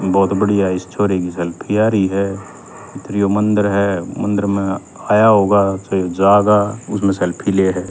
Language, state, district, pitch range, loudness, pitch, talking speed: Haryanvi, Haryana, Rohtak, 95-105 Hz, -16 LUFS, 100 Hz, 175 wpm